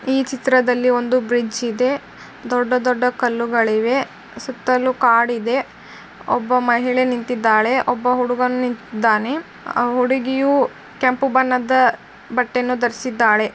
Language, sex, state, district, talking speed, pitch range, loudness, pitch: Kannada, female, Karnataka, Dharwad, 90 wpm, 240-255 Hz, -18 LUFS, 250 Hz